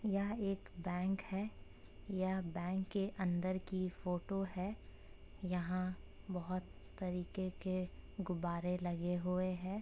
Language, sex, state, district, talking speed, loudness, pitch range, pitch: Hindi, female, Uttar Pradesh, Jalaun, 115 wpm, -41 LUFS, 180-195 Hz, 185 Hz